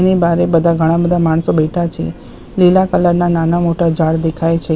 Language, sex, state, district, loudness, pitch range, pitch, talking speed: Gujarati, female, Maharashtra, Mumbai Suburban, -14 LUFS, 160-175 Hz, 170 Hz, 200 wpm